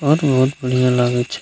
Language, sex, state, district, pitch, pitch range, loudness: Maithili, male, Bihar, Begusarai, 125 Hz, 125-140 Hz, -17 LUFS